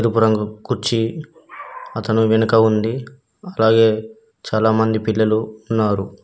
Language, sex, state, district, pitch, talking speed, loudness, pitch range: Telugu, male, Telangana, Mahabubabad, 110 Hz, 95 wpm, -18 LUFS, 110-120 Hz